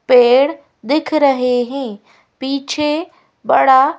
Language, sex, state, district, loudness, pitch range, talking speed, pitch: Hindi, female, Madhya Pradesh, Bhopal, -15 LUFS, 250-295 Hz, 90 wpm, 275 Hz